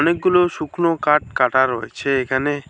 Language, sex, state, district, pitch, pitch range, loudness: Bengali, male, West Bengal, Alipurduar, 145 Hz, 130-165 Hz, -18 LUFS